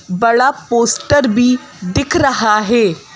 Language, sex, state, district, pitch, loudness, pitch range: Hindi, female, Madhya Pradesh, Bhopal, 235 Hz, -13 LUFS, 210-260 Hz